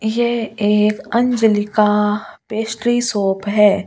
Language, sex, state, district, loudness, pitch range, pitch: Hindi, female, Delhi, New Delhi, -17 LUFS, 210-230 Hz, 215 Hz